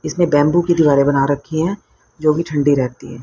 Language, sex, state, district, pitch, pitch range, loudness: Hindi, female, Haryana, Rohtak, 150 Hz, 140-165 Hz, -16 LUFS